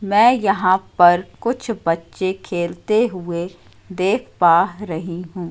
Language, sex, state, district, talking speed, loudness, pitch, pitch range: Hindi, female, Madhya Pradesh, Katni, 120 wpm, -19 LUFS, 185 Hz, 175-210 Hz